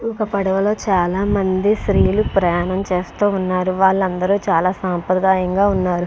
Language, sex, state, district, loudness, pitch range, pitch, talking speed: Telugu, female, Andhra Pradesh, Srikakulam, -18 LUFS, 185-200 Hz, 190 Hz, 140 wpm